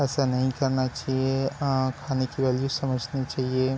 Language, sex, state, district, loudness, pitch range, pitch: Hindi, male, Chhattisgarh, Bilaspur, -26 LUFS, 130-135 Hz, 130 Hz